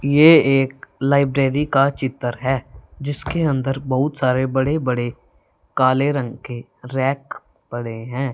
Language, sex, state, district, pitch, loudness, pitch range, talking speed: Hindi, female, Punjab, Fazilka, 135 Hz, -19 LUFS, 130-140 Hz, 130 wpm